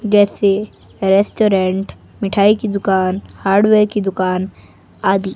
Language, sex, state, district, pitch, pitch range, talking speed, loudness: Hindi, female, Himachal Pradesh, Shimla, 195 Hz, 190-205 Hz, 100 wpm, -16 LUFS